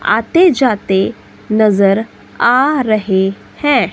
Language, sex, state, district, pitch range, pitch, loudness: Hindi, female, Himachal Pradesh, Shimla, 195-260 Hz, 220 Hz, -13 LUFS